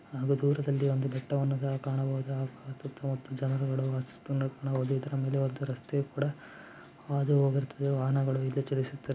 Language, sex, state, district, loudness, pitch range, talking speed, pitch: Kannada, male, Karnataka, Dharwad, -31 LUFS, 135-140 Hz, 80 wpm, 135 Hz